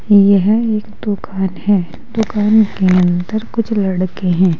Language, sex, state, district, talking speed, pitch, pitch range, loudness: Hindi, female, Uttar Pradesh, Saharanpur, 130 wpm, 200 Hz, 185-215 Hz, -15 LUFS